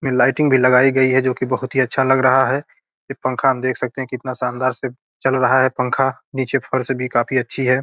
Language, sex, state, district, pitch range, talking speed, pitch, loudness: Hindi, male, Bihar, Gopalganj, 130-135 Hz, 245 wpm, 130 Hz, -18 LUFS